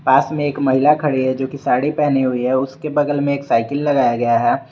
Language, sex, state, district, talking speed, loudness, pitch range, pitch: Hindi, male, Jharkhand, Garhwa, 255 wpm, -17 LUFS, 130-145 Hz, 140 Hz